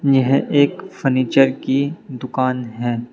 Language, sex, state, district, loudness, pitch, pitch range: Hindi, male, Uttar Pradesh, Saharanpur, -18 LUFS, 135 Hz, 130-140 Hz